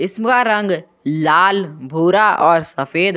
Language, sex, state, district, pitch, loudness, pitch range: Hindi, male, Jharkhand, Garhwa, 175 Hz, -15 LUFS, 160-200 Hz